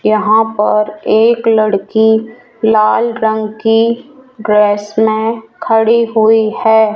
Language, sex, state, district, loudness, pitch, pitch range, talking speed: Hindi, female, Rajasthan, Jaipur, -12 LUFS, 220 Hz, 215-225 Hz, 105 wpm